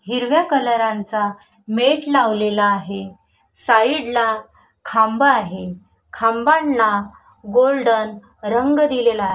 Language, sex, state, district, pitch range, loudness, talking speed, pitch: Marathi, female, Maharashtra, Solapur, 210-255 Hz, -18 LUFS, 95 wpm, 225 Hz